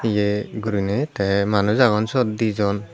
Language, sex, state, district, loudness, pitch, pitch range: Chakma, male, Tripura, Dhalai, -20 LUFS, 105 Hz, 100-110 Hz